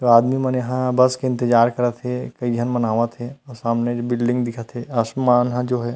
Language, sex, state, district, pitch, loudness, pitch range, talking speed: Chhattisgarhi, male, Chhattisgarh, Rajnandgaon, 120 Hz, -20 LUFS, 120-125 Hz, 210 wpm